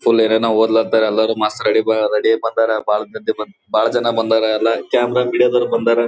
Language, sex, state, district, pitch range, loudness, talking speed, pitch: Kannada, male, Karnataka, Gulbarga, 110-115 Hz, -16 LUFS, 170 wpm, 110 Hz